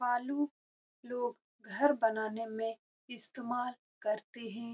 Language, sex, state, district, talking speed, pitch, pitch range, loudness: Hindi, female, Bihar, Lakhisarai, 100 wpm, 240 Hz, 225-250 Hz, -36 LUFS